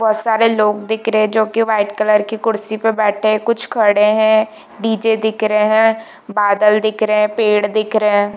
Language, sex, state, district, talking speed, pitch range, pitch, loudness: Hindi, female, Chhattisgarh, Bilaspur, 215 wpm, 210-220 Hz, 215 Hz, -15 LUFS